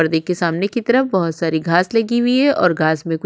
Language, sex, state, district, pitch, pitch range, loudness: Hindi, female, Chhattisgarh, Sukma, 180 Hz, 165-235 Hz, -17 LUFS